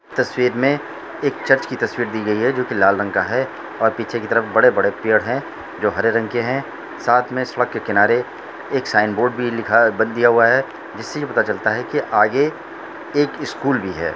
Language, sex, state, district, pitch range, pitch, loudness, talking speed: Hindi, male, Jharkhand, Jamtara, 115-125 Hz, 120 Hz, -18 LUFS, 205 wpm